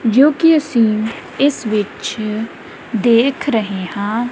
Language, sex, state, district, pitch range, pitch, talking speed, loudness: Punjabi, female, Punjab, Kapurthala, 215-275 Hz, 230 Hz, 110 wpm, -16 LUFS